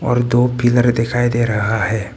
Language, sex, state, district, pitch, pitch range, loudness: Hindi, male, Arunachal Pradesh, Papum Pare, 120 Hz, 110-120 Hz, -16 LUFS